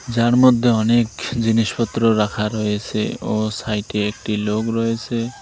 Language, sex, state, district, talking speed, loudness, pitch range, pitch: Bengali, male, West Bengal, Cooch Behar, 120 wpm, -19 LUFS, 105-115 Hz, 115 Hz